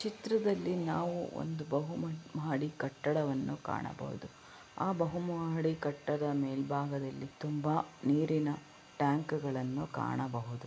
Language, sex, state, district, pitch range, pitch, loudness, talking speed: Kannada, female, Karnataka, Belgaum, 140-160 Hz, 150 Hz, -35 LUFS, 90 wpm